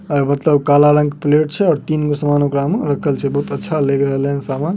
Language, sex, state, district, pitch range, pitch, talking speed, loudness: Magahi, male, Bihar, Samastipur, 140-150 Hz, 145 Hz, 265 wpm, -16 LUFS